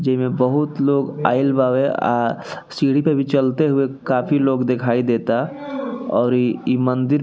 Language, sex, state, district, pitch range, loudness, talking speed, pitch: Bhojpuri, male, Bihar, East Champaran, 125-145 Hz, -19 LUFS, 155 wpm, 135 Hz